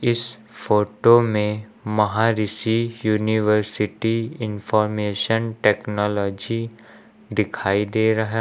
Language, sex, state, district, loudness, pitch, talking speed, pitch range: Hindi, male, Uttar Pradesh, Lucknow, -21 LUFS, 110 Hz, 70 wpm, 105-115 Hz